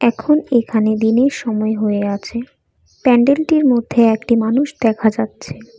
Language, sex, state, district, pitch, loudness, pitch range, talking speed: Bengali, female, Assam, Kamrup Metropolitan, 230 Hz, -16 LUFS, 220-255 Hz, 135 wpm